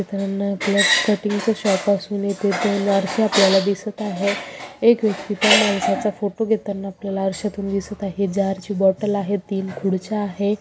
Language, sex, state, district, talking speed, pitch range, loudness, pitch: Marathi, female, Maharashtra, Chandrapur, 155 wpm, 195-210 Hz, -20 LUFS, 200 Hz